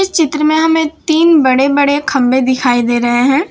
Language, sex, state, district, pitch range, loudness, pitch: Hindi, female, Gujarat, Valsad, 260-320 Hz, -12 LUFS, 285 Hz